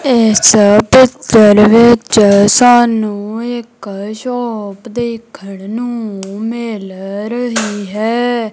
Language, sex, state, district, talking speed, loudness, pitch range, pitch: Punjabi, female, Punjab, Kapurthala, 75 wpm, -11 LUFS, 205-240 Hz, 220 Hz